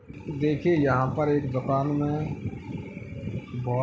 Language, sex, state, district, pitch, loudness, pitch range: Hindi, male, Uttar Pradesh, Etah, 135 Hz, -27 LUFS, 125-150 Hz